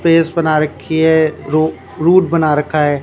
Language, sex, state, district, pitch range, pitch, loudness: Hindi, male, Rajasthan, Jaipur, 150-165 Hz, 155 Hz, -14 LUFS